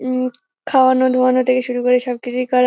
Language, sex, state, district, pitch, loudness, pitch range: Bengali, female, West Bengal, North 24 Parganas, 255 Hz, -17 LUFS, 250-255 Hz